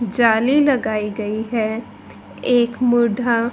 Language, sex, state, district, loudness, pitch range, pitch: Hindi, female, Haryana, Rohtak, -18 LUFS, 220-240 Hz, 235 Hz